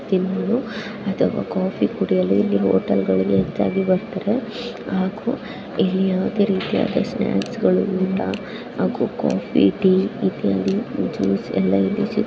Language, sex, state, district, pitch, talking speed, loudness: Kannada, female, Karnataka, Shimoga, 185 Hz, 85 wpm, -21 LUFS